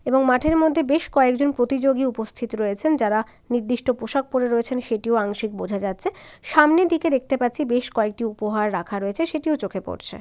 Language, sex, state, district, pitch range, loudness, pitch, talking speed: Bengali, female, West Bengal, Dakshin Dinajpur, 220-285 Hz, -22 LUFS, 250 Hz, 160 wpm